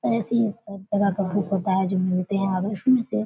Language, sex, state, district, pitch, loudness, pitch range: Hindi, female, Bihar, Darbhanga, 200 Hz, -23 LUFS, 190-210 Hz